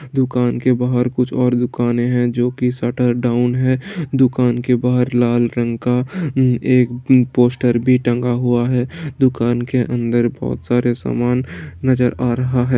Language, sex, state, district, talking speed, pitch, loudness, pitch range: Hindi, male, Bihar, Saran, 170 wpm, 125 Hz, -17 LUFS, 120-125 Hz